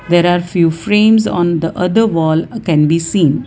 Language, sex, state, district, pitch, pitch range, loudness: English, female, Gujarat, Valsad, 175 Hz, 165-205 Hz, -13 LUFS